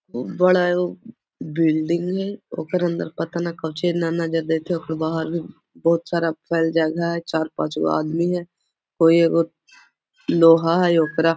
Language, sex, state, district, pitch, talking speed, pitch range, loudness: Magahi, female, Bihar, Gaya, 165 Hz, 180 wpm, 160-175 Hz, -21 LUFS